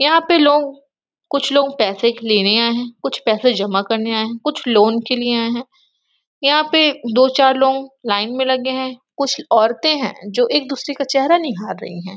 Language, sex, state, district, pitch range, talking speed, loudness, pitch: Hindi, female, Chhattisgarh, Raigarh, 225-280 Hz, 210 wpm, -16 LUFS, 260 Hz